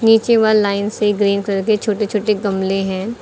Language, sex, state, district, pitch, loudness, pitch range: Hindi, female, Uttar Pradesh, Lucknow, 210 Hz, -16 LUFS, 200-215 Hz